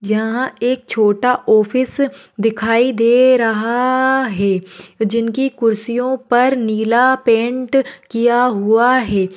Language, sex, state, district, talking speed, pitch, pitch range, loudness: Hindi, female, Maharashtra, Pune, 95 wpm, 235 Hz, 220-255 Hz, -15 LUFS